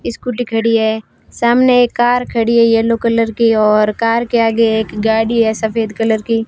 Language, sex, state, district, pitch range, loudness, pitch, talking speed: Hindi, female, Rajasthan, Barmer, 220-235 Hz, -14 LUFS, 230 Hz, 195 wpm